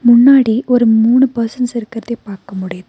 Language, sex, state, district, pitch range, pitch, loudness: Tamil, female, Tamil Nadu, Nilgiris, 220-245 Hz, 235 Hz, -12 LUFS